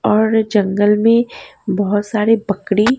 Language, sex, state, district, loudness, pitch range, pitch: Hindi, female, Haryana, Jhajjar, -15 LUFS, 205-220 Hz, 210 Hz